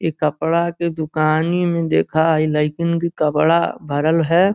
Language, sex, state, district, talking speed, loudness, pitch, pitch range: Bhojpuri, male, Uttar Pradesh, Gorakhpur, 160 wpm, -18 LUFS, 160 Hz, 155-170 Hz